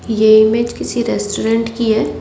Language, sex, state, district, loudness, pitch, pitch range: Hindi, female, Delhi, New Delhi, -14 LUFS, 220 Hz, 220-230 Hz